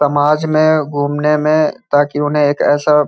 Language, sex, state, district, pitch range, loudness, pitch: Hindi, male, Uttar Pradesh, Hamirpur, 145-155 Hz, -14 LUFS, 150 Hz